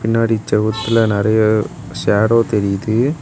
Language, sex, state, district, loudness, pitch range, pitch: Tamil, male, Tamil Nadu, Kanyakumari, -16 LUFS, 105-115 Hz, 110 Hz